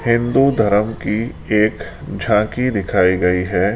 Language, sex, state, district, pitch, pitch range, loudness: Hindi, male, Rajasthan, Jaipur, 105 Hz, 95-115 Hz, -17 LUFS